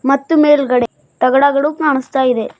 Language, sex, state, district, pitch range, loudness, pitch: Kannada, male, Karnataka, Bidar, 260-295 Hz, -14 LUFS, 275 Hz